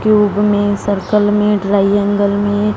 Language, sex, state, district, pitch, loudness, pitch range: Hindi, female, Punjab, Fazilka, 205 Hz, -14 LUFS, 200-210 Hz